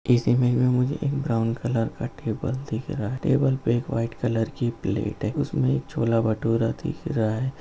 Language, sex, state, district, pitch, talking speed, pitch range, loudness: Hindi, male, Bihar, Gaya, 120 Hz, 195 wpm, 115-135 Hz, -25 LUFS